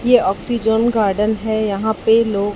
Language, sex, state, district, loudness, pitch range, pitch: Hindi, male, Chhattisgarh, Raipur, -17 LUFS, 205-225 Hz, 220 Hz